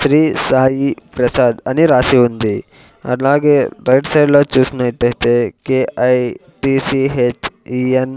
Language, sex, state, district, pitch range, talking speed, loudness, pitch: Telugu, male, Andhra Pradesh, Sri Satya Sai, 125-140 Hz, 140 wpm, -14 LUFS, 130 Hz